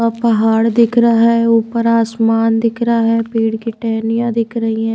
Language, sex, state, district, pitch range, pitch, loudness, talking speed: Hindi, female, Maharashtra, Washim, 225-230 Hz, 230 Hz, -14 LUFS, 195 wpm